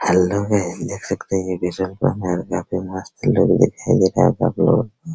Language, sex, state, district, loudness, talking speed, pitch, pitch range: Hindi, male, Bihar, Araria, -19 LUFS, 175 wpm, 95 Hz, 90-100 Hz